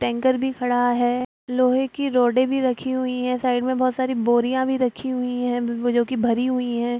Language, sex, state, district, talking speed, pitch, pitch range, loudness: Hindi, female, Bihar, Araria, 215 wpm, 250 Hz, 245-255 Hz, -22 LUFS